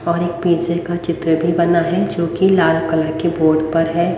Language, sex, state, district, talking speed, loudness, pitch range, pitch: Hindi, female, Haryana, Rohtak, 215 wpm, -16 LUFS, 165-175 Hz, 170 Hz